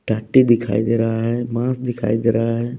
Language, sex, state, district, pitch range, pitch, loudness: Hindi, male, Bihar, West Champaran, 115-120 Hz, 115 Hz, -18 LUFS